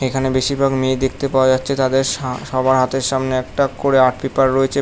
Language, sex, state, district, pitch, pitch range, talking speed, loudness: Bengali, male, West Bengal, North 24 Parganas, 130 Hz, 130-135 Hz, 200 wpm, -17 LUFS